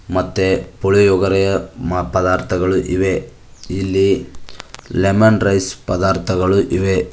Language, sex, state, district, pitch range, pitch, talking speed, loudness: Kannada, male, Karnataka, Koppal, 90-95 Hz, 95 Hz, 75 wpm, -16 LUFS